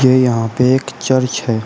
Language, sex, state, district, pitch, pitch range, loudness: Hindi, male, Uttar Pradesh, Shamli, 125 Hz, 115-130 Hz, -15 LUFS